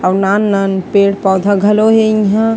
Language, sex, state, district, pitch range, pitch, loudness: Chhattisgarhi, female, Chhattisgarh, Sarguja, 195-215 Hz, 200 Hz, -12 LUFS